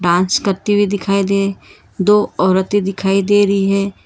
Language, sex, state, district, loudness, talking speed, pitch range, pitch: Hindi, female, Karnataka, Bangalore, -15 LUFS, 165 wpm, 195-205 Hz, 195 Hz